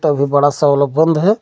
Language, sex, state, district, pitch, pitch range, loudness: Hindi, male, Jharkhand, Garhwa, 145 Hz, 140-160 Hz, -14 LUFS